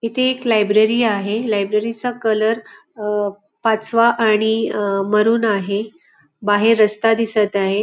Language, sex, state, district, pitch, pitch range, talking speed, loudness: Marathi, female, Goa, North and South Goa, 220 Hz, 210-230 Hz, 130 wpm, -17 LUFS